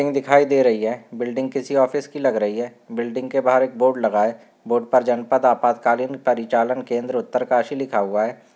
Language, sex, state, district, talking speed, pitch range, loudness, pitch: Hindi, male, Uttarakhand, Uttarkashi, 205 wpm, 120-130 Hz, -20 LUFS, 125 Hz